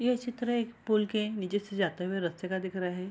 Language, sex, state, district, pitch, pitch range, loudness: Hindi, female, Bihar, Kishanganj, 200 Hz, 185-230 Hz, -32 LUFS